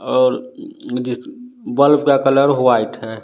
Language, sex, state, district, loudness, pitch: Hindi, male, Bihar, West Champaran, -16 LUFS, 140 Hz